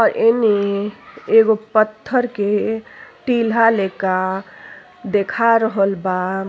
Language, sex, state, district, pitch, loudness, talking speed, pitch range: Bhojpuri, female, Uttar Pradesh, Ghazipur, 215 Hz, -18 LUFS, 90 wpm, 195-225 Hz